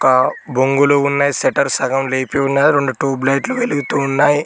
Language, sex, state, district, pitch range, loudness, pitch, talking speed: Telugu, male, Telangana, Mahabubabad, 135-145 Hz, -16 LUFS, 140 Hz, 160 wpm